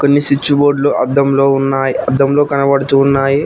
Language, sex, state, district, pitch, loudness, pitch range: Telugu, male, Telangana, Mahabubabad, 140 Hz, -12 LUFS, 135-145 Hz